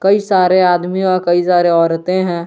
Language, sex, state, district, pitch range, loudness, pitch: Hindi, male, Jharkhand, Garhwa, 175-185 Hz, -13 LUFS, 180 Hz